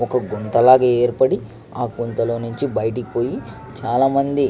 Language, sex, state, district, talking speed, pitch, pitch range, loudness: Telugu, male, Andhra Pradesh, Krishna, 175 wpm, 120 Hz, 115-130 Hz, -19 LUFS